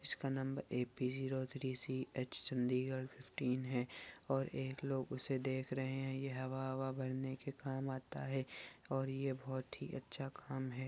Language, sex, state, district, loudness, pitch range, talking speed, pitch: Hindi, male, Bihar, Saharsa, -42 LUFS, 130-135 Hz, 180 wpm, 130 Hz